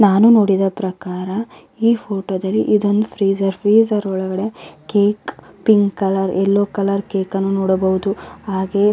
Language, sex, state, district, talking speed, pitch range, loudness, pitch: Kannada, female, Karnataka, Raichur, 120 wpm, 190-210 Hz, -17 LUFS, 195 Hz